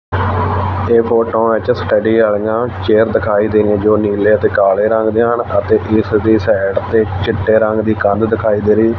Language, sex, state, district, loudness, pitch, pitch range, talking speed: Punjabi, male, Punjab, Fazilka, -13 LUFS, 110 Hz, 105-110 Hz, 185 wpm